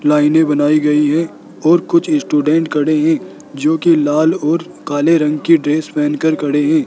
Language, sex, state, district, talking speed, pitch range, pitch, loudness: Hindi, male, Rajasthan, Jaipur, 175 wpm, 150-160 Hz, 155 Hz, -14 LUFS